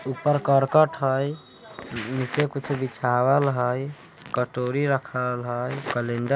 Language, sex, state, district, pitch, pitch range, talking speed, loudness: Hindi, male, Bihar, Vaishali, 135 Hz, 125-140 Hz, 105 wpm, -24 LUFS